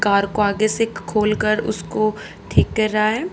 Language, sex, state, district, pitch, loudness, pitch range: Hindi, female, Haryana, Charkhi Dadri, 215 Hz, -19 LUFS, 210-215 Hz